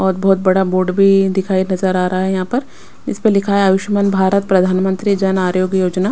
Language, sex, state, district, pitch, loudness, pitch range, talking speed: Hindi, female, Bihar, West Champaran, 190 Hz, -15 LUFS, 185-195 Hz, 215 wpm